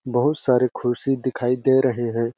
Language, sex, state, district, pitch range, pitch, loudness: Hindi, male, Chhattisgarh, Balrampur, 120-130 Hz, 125 Hz, -21 LUFS